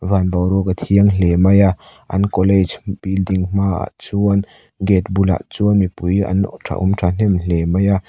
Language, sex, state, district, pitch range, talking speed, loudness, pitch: Mizo, male, Mizoram, Aizawl, 95-100 Hz, 170 wpm, -17 LUFS, 95 Hz